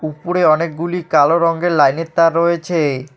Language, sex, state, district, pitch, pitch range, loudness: Bengali, male, West Bengal, Alipurduar, 165 Hz, 155-170 Hz, -15 LUFS